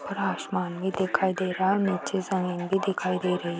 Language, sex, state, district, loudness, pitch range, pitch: Hindi, female, Bihar, Saran, -27 LUFS, 180-195 Hz, 190 Hz